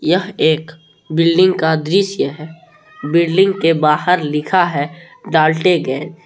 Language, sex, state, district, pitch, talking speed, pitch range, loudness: Hindi, male, Jharkhand, Palamu, 165 Hz, 125 wpm, 155-180 Hz, -15 LUFS